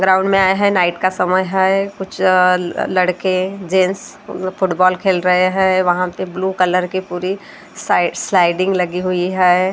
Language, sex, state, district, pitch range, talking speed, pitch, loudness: Hindi, female, Maharashtra, Gondia, 180-190 Hz, 160 wpm, 185 Hz, -16 LUFS